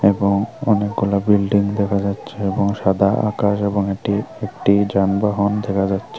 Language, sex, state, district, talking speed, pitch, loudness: Bengali, female, Tripura, Unakoti, 135 wpm, 100 Hz, -19 LUFS